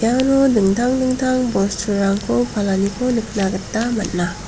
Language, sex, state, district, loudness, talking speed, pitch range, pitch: Garo, female, Meghalaya, South Garo Hills, -18 LUFS, 105 wpm, 195-250 Hz, 225 Hz